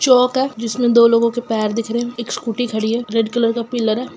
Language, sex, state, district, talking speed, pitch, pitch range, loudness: Hindi, female, Bihar, Sitamarhi, 260 wpm, 235 Hz, 230-240 Hz, -17 LUFS